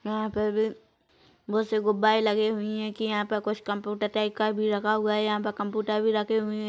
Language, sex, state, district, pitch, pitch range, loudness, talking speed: Hindi, female, Chhattisgarh, Rajnandgaon, 215 Hz, 210-215 Hz, -27 LUFS, 225 wpm